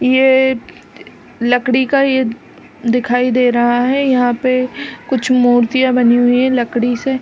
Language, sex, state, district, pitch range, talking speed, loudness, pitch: Hindi, female, Chhattisgarh, Balrampur, 245-260 Hz, 150 wpm, -14 LUFS, 250 Hz